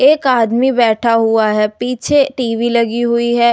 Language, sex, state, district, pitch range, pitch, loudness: Hindi, female, Delhi, New Delhi, 230-250 Hz, 235 Hz, -14 LUFS